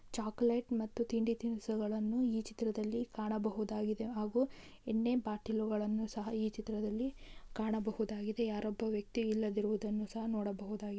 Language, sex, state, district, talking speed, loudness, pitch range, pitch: Kannada, female, Karnataka, Raichur, 110 wpm, -37 LUFS, 215-230 Hz, 220 Hz